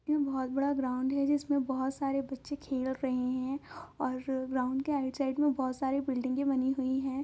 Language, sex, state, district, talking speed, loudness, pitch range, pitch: Hindi, female, Andhra Pradesh, Anantapur, 200 wpm, -32 LUFS, 260-280 Hz, 265 Hz